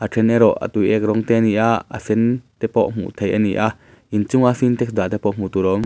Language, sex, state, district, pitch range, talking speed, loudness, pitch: Mizo, male, Mizoram, Aizawl, 105-115 Hz, 265 wpm, -18 LUFS, 110 Hz